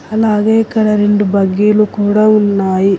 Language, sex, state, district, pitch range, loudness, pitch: Telugu, female, Telangana, Hyderabad, 200-215 Hz, -12 LUFS, 210 Hz